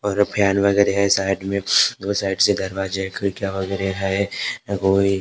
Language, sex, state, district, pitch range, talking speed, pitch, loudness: Hindi, male, Maharashtra, Gondia, 95-100 Hz, 160 wpm, 100 Hz, -20 LUFS